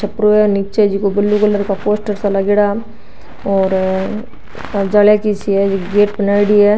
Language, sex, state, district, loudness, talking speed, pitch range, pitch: Marwari, female, Rajasthan, Nagaur, -14 LUFS, 160 wpm, 200-210 Hz, 205 Hz